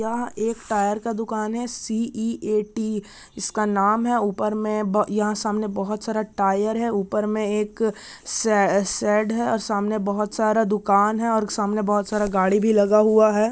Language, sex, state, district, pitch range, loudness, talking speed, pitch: Maithili, male, Bihar, Supaul, 205-220 Hz, -22 LUFS, 180 wpm, 215 Hz